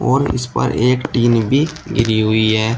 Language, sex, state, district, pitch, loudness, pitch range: Hindi, male, Uttar Pradesh, Shamli, 120 Hz, -16 LUFS, 110-130 Hz